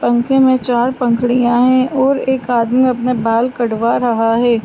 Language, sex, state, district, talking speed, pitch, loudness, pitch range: Hindi, female, Uttar Pradesh, Varanasi, 165 wpm, 245 Hz, -14 LUFS, 235-255 Hz